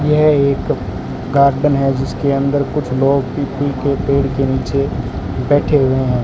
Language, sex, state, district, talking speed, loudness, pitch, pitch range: Hindi, male, Rajasthan, Bikaner, 155 wpm, -16 LUFS, 140 Hz, 130-140 Hz